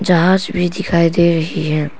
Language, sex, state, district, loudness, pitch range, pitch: Hindi, female, Arunachal Pradesh, Papum Pare, -15 LUFS, 160-180 Hz, 170 Hz